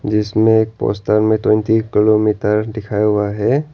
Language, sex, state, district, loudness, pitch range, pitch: Hindi, male, Arunachal Pradesh, Lower Dibang Valley, -16 LUFS, 105-110 Hz, 110 Hz